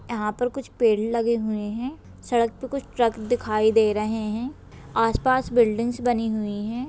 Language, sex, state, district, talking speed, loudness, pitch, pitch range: Hindi, male, Bihar, Gopalganj, 175 wpm, -24 LUFS, 230 Hz, 215-245 Hz